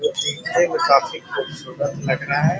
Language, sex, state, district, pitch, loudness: Hindi, male, Bihar, Muzaffarpur, 165 Hz, -20 LUFS